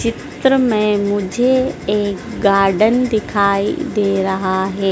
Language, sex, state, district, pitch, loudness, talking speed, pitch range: Hindi, female, Madhya Pradesh, Dhar, 205 Hz, -16 LUFS, 110 wpm, 195-230 Hz